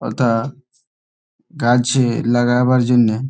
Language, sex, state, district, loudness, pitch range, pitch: Bengali, male, West Bengal, Malda, -16 LUFS, 115-125 Hz, 120 Hz